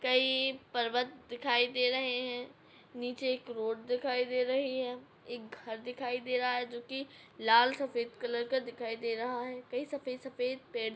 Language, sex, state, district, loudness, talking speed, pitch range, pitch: Hindi, female, Uttarakhand, Tehri Garhwal, -33 LUFS, 180 wpm, 240-255 Hz, 250 Hz